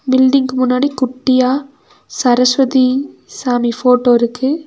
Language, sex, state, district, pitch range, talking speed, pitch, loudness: Tamil, female, Tamil Nadu, Nilgiris, 250-270 Hz, 90 wpm, 260 Hz, -14 LUFS